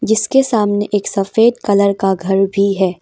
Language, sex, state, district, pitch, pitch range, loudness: Hindi, female, Arunachal Pradesh, Papum Pare, 200 Hz, 195-220 Hz, -14 LUFS